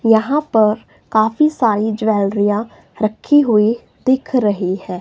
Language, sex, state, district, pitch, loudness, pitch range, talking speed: Hindi, female, Himachal Pradesh, Shimla, 220 Hz, -16 LUFS, 210-255 Hz, 120 wpm